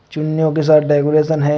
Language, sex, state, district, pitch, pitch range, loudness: Hindi, male, Uttar Pradesh, Shamli, 155 Hz, 150-155 Hz, -15 LUFS